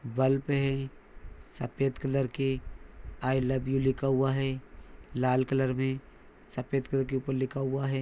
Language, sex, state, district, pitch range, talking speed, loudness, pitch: Hindi, male, Maharashtra, Nagpur, 130-135 Hz, 155 wpm, -30 LUFS, 135 Hz